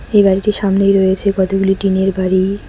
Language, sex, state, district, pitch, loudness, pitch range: Bengali, female, West Bengal, Cooch Behar, 195 Hz, -14 LUFS, 190-200 Hz